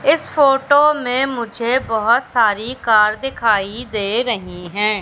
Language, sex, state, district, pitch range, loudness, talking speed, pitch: Hindi, female, Madhya Pradesh, Katni, 215-270 Hz, -17 LUFS, 130 wpm, 235 Hz